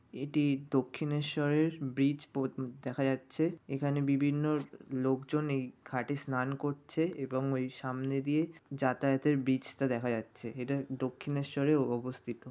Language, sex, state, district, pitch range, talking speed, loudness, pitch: Bengali, male, West Bengal, North 24 Parganas, 130-145 Hz, 130 wpm, -34 LUFS, 135 Hz